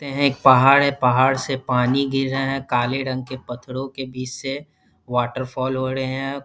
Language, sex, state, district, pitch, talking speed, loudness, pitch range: Hindi, male, Bihar, Lakhisarai, 130 Hz, 205 wpm, -20 LUFS, 130-135 Hz